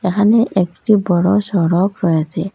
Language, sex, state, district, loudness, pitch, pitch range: Bengali, female, Assam, Hailakandi, -15 LUFS, 190 Hz, 175-205 Hz